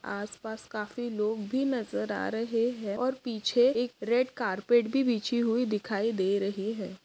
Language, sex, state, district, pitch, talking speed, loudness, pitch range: Hindi, female, Maharashtra, Nagpur, 225 Hz, 170 wpm, -30 LUFS, 210-245 Hz